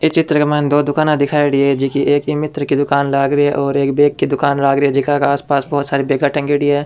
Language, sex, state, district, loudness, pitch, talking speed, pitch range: Rajasthani, male, Rajasthan, Churu, -15 LUFS, 145 Hz, 280 wpm, 140-145 Hz